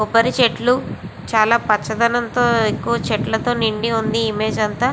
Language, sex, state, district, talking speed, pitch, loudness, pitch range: Telugu, female, Andhra Pradesh, Visakhapatnam, 135 wpm, 230 Hz, -18 LUFS, 220-240 Hz